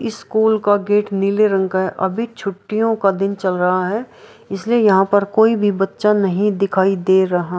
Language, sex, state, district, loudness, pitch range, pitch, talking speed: Hindi, female, Bihar, Kishanganj, -17 LUFS, 190-215 Hz, 200 Hz, 195 wpm